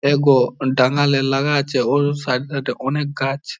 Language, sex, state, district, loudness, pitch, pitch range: Bengali, male, West Bengal, Jhargram, -18 LUFS, 135 Hz, 130-145 Hz